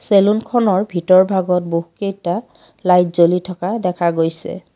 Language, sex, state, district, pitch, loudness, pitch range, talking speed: Assamese, female, Assam, Kamrup Metropolitan, 185 Hz, -17 LUFS, 175-200 Hz, 115 wpm